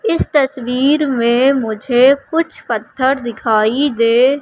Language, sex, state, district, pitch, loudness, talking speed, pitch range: Hindi, female, Madhya Pradesh, Katni, 260 Hz, -15 LUFS, 110 wpm, 235-280 Hz